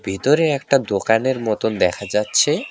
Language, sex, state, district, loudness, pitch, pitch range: Bengali, male, West Bengal, Alipurduar, -18 LUFS, 110 Hz, 100-135 Hz